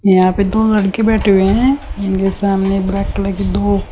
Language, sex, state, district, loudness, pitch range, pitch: Hindi, female, Uttar Pradesh, Shamli, -14 LUFS, 195-205 Hz, 195 Hz